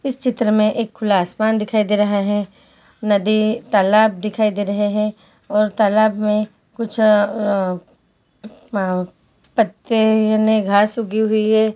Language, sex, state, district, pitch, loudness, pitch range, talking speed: Hindi, female, Chhattisgarh, Bilaspur, 215 Hz, -18 LUFS, 205-220 Hz, 150 wpm